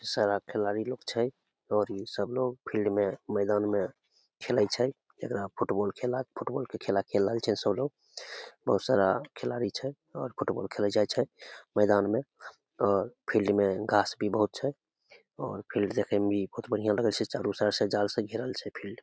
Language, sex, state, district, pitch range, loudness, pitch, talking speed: Maithili, male, Bihar, Samastipur, 100-115 Hz, -30 LUFS, 105 Hz, 190 wpm